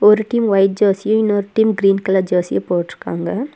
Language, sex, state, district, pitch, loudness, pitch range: Tamil, female, Tamil Nadu, Nilgiris, 205 Hz, -16 LUFS, 190-220 Hz